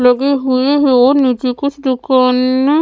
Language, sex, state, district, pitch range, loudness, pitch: Hindi, female, Maharashtra, Mumbai Suburban, 255-280 Hz, -13 LUFS, 260 Hz